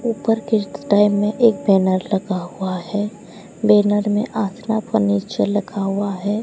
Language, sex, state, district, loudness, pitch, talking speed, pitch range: Hindi, female, Odisha, Sambalpur, -19 LUFS, 205 Hz, 150 wpm, 195-220 Hz